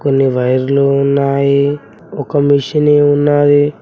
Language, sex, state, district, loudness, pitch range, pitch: Telugu, male, Telangana, Mahabubabad, -12 LUFS, 140-145 Hz, 140 Hz